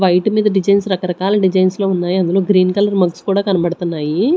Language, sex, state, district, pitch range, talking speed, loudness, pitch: Telugu, female, Andhra Pradesh, Sri Satya Sai, 180-200 Hz, 180 wpm, -15 LUFS, 190 Hz